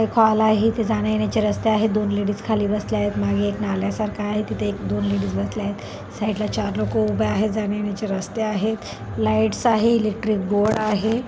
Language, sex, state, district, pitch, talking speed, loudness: Marathi, male, Maharashtra, Pune, 210 Hz, 180 wpm, -22 LUFS